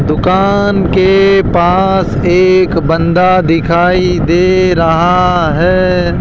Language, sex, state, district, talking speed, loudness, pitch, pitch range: Hindi, male, Rajasthan, Jaipur, 85 wpm, -10 LUFS, 180 Hz, 170-185 Hz